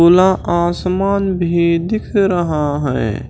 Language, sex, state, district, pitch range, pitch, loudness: Hindi, male, Chhattisgarh, Raipur, 170-190 Hz, 175 Hz, -16 LUFS